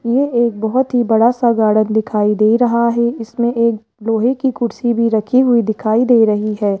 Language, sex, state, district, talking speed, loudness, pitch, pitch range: Hindi, male, Rajasthan, Jaipur, 205 wpm, -15 LUFS, 230 Hz, 220-240 Hz